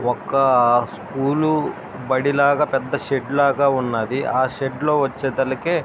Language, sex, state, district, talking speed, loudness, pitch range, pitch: Telugu, male, Andhra Pradesh, Srikakulam, 135 wpm, -20 LUFS, 130-140 Hz, 135 Hz